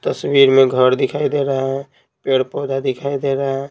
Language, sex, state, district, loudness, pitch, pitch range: Hindi, male, Bihar, Patna, -17 LUFS, 135 Hz, 135-140 Hz